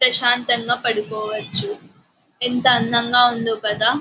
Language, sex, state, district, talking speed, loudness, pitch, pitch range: Telugu, female, Andhra Pradesh, Anantapur, 105 wpm, -16 LUFS, 240 Hz, 220-245 Hz